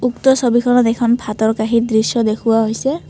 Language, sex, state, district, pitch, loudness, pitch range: Assamese, female, Assam, Kamrup Metropolitan, 235 Hz, -15 LUFS, 220-245 Hz